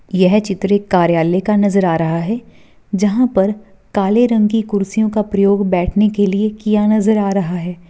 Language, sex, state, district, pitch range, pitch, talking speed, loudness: Hindi, female, Bihar, Darbhanga, 190-215 Hz, 200 Hz, 190 wpm, -15 LUFS